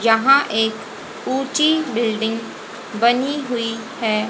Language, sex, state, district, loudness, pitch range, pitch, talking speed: Hindi, female, Haryana, Jhajjar, -19 LUFS, 225-270 Hz, 230 Hz, 95 wpm